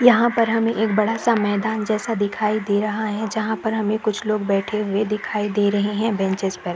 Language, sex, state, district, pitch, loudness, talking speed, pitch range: Hindi, female, Chhattisgarh, Raigarh, 215 Hz, -21 LUFS, 195 wpm, 205-220 Hz